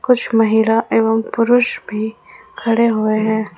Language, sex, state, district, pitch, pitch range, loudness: Hindi, female, Jharkhand, Ranchi, 225 Hz, 220-230 Hz, -16 LUFS